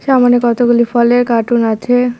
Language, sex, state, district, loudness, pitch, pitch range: Bengali, female, West Bengal, Cooch Behar, -12 LUFS, 240 Hz, 235-245 Hz